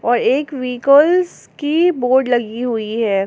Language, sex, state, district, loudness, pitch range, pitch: Hindi, female, Jharkhand, Garhwa, -16 LUFS, 240-295 Hz, 250 Hz